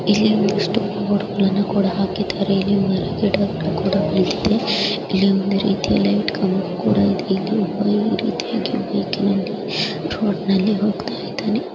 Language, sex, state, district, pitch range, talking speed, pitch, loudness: Kannada, female, Karnataka, Mysore, 190-205 Hz, 105 wpm, 195 Hz, -19 LUFS